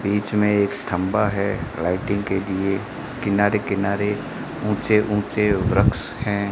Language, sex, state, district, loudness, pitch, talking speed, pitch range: Hindi, male, Rajasthan, Bikaner, -22 LUFS, 100 Hz, 130 wpm, 100-105 Hz